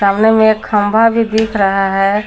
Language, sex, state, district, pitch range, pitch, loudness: Hindi, female, Jharkhand, Garhwa, 200-220 Hz, 215 Hz, -12 LUFS